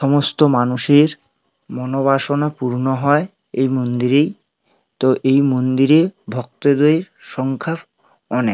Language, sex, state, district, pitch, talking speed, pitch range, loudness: Bengali, male, West Bengal, Paschim Medinipur, 140 Hz, 90 wpm, 130-150 Hz, -17 LUFS